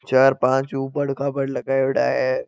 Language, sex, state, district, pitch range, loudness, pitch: Marwari, male, Rajasthan, Nagaur, 135-140 Hz, -21 LUFS, 135 Hz